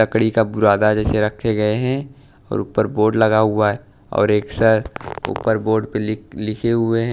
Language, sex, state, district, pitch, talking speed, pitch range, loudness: Hindi, male, Chhattisgarh, Raipur, 110 Hz, 195 wpm, 105-115 Hz, -18 LUFS